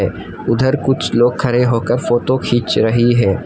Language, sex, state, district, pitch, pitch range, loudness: Hindi, male, Assam, Kamrup Metropolitan, 120 Hz, 120-130 Hz, -15 LUFS